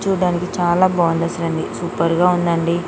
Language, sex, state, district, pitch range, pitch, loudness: Telugu, female, Telangana, Nalgonda, 170-180 Hz, 175 Hz, -18 LUFS